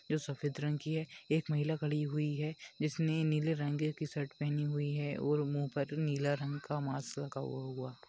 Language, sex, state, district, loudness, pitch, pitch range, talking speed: Hindi, female, West Bengal, Dakshin Dinajpur, -36 LUFS, 150 Hz, 145-155 Hz, 210 wpm